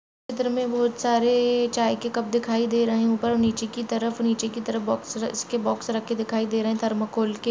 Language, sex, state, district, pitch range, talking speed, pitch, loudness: Angika, female, Bihar, Madhepura, 225-235 Hz, 205 wpm, 230 Hz, -24 LUFS